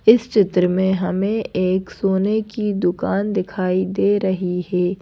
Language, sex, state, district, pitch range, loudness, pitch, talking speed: Hindi, female, Madhya Pradesh, Bhopal, 185-205 Hz, -19 LUFS, 190 Hz, 145 wpm